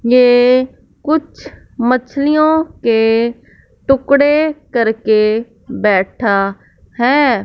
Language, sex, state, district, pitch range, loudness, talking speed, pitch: Hindi, female, Punjab, Fazilka, 225-285 Hz, -13 LUFS, 65 wpm, 245 Hz